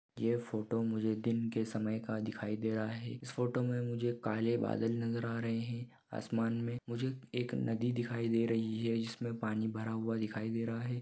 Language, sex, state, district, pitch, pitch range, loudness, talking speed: Hindi, male, Jharkhand, Sahebganj, 115 Hz, 110-120 Hz, -37 LUFS, 205 wpm